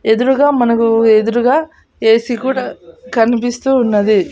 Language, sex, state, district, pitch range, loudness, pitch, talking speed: Telugu, female, Andhra Pradesh, Annamaya, 225-260 Hz, -13 LUFS, 235 Hz, 95 wpm